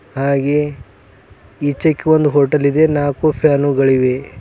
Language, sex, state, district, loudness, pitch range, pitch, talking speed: Kannada, male, Karnataka, Bidar, -15 LUFS, 130-150 Hz, 140 Hz, 95 wpm